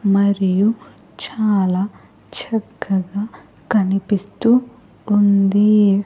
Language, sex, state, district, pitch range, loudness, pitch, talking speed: Telugu, female, Andhra Pradesh, Sri Satya Sai, 195-215 Hz, -18 LUFS, 205 Hz, 50 wpm